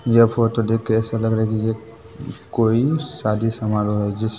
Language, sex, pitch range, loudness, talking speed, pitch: Bhojpuri, male, 110-115 Hz, -20 LUFS, 205 wpm, 110 Hz